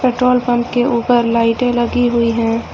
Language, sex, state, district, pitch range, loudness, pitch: Hindi, female, Uttar Pradesh, Lucknow, 235-245 Hz, -15 LUFS, 240 Hz